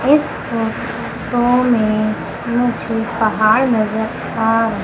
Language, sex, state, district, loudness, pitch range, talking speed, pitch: Hindi, female, Madhya Pradesh, Umaria, -17 LUFS, 220-240 Hz, 100 wpm, 225 Hz